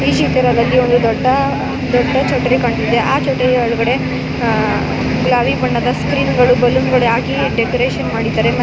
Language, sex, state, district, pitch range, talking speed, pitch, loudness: Kannada, female, Karnataka, Mysore, 230-250 Hz, 125 wpm, 245 Hz, -14 LUFS